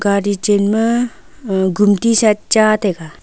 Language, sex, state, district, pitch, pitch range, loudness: Wancho, female, Arunachal Pradesh, Longding, 205 Hz, 200-220 Hz, -15 LUFS